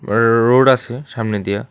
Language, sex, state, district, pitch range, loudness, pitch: Bengali, male, Tripura, West Tripura, 110-130 Hz, -15 LUFS, 115 Hz